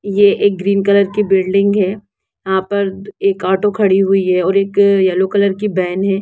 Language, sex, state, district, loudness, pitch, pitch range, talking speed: Hindi, female, Jharkhand, Jamtara, -14 LUFS, 195 Hz, 190-200 Hz, 200 wpm